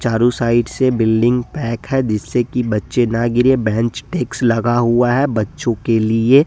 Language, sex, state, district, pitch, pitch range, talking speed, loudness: Hindi, male, Bihar, West Champaran, 120 Hz, 115-125 Hz, 175 wpm, -16 LUFS